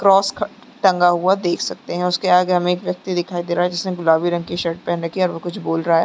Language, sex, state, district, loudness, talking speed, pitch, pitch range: Hindi, female, Chhattisgarh, Sarguja, -19 LUFS, 305 wpm, 180 Hz, 175-185 Hz